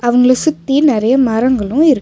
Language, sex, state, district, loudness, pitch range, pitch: Tamil, female, Tamil Nadu, Nilgiris, -12 LUFS, 240-290 Hz, 255 Hz